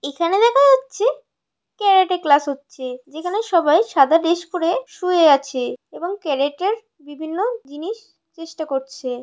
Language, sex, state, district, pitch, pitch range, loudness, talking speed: Bengali, female, West Bengal, North 24 Parganas, 330 Hz, 280-380 Hz, -19 LUFS, 125 wpm